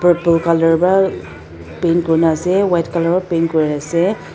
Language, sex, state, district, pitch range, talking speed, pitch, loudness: Nagamese, female, Nagaland, Dimapur, 160-175 Hz, 165 wpm, 170 Hz, -15 LUFS